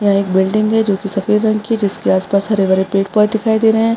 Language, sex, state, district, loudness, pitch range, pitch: Hindi, female, Maharashtra, Aurangabad, -14 LUFS, 195-220 Hz, 210 Hz